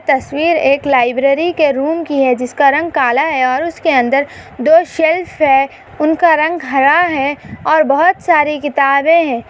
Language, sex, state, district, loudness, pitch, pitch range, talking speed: Hindi, female, Maharashtra, Pune, -13 LUFS, 295 Hz, 275-325 Hz, 165 wpm